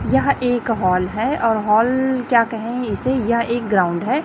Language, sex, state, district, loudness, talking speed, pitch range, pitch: Hindi, female, Chhattisgarh, Raipur, -18 LUFS, 185 wpm, 215-255 Hz, 235 Hz